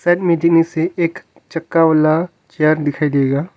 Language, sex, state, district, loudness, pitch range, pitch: Hindi, male, Arunachal Pradesh, Longding, -16 LUFS, 155-170 Hz, 165 Hz